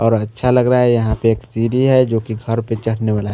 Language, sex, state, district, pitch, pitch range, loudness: Hindi, male, Chandigarh, Chandigarh, 115 Hz, 110-125 Hz, -16 LUFS